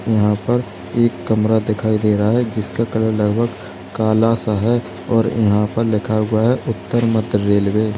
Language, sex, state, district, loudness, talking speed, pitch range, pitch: Hindi, male, Uttar Pradesh, Lalitpur, -17 LUFS, 180 wpm, 105-115 Hz, 110 Hz